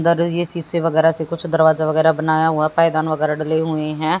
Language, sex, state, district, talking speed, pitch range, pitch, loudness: Hindi, female, Haryana, Jhajjar, 215 wpm, 155-165 Hz, 160 Hz, -17 LUFS